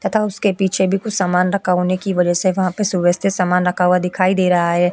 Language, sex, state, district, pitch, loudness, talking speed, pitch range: Hindi, female, Uttar Pradesh, Etah, 185 Hz, -17 LUFS, 255 wpm, 180-195 Hz